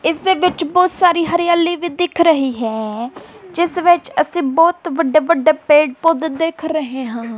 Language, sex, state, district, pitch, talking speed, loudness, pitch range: Punjabi, female, Punjab, Kapurthala, 330 Hz, 170 wpm, -15 LUFS, 295-345 Hz